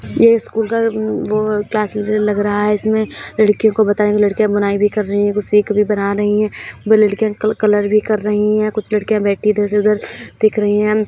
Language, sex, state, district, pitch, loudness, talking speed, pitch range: Hindi, female, Uttar Pradesh, Hamirpur, 210 Hz, -15 LUFS, 255 wpm, 210-215 Hz